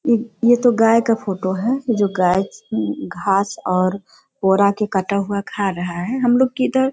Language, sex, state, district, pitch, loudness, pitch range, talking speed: Hindi, female, Bihar, Sitamarhi, 200 Hz, -18 LUFS, 190-240 Hz, 180 wpm